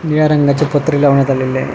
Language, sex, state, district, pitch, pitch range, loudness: Marathi, male, Maharashtra, Pune, 145 Hz, 140-150 Hz, -13 LUFS